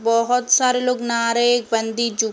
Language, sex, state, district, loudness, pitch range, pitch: Hindi, female, Uttar Pradesh, Varanasi, -18 LUFS, 230-250 Hz, 235 Hz